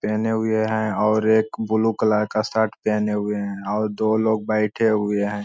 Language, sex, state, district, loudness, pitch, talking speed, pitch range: Magahi, male, Bihar, Lakhisarai, -21 LUFS, 110 Hz, 200 wpm, 105-110 Hz